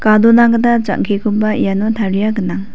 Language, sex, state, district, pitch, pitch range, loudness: Garo, female, Meghalaya, West Garo Hills, 215 Hz, 205-225 Hz, -13 LUFS